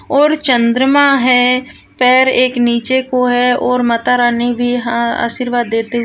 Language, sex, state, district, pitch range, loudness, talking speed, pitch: Hindi, female, Maharashtra, Chandrapur, 240-255 Hz, -12 LUFS, 150 wpm, 250 Hz